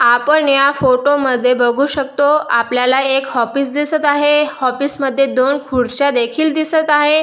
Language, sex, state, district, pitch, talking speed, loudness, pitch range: Marathi, female, Maharashtra, Dhule, 275 Hz, 150 wpm, -14 LUFS, 255-295 Hz